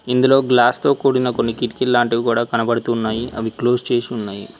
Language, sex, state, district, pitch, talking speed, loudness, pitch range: Telugu, male, Telangana, Mahabubabad, 120 Hz, 155 wpm, -18 LUFS, 115-125 Hz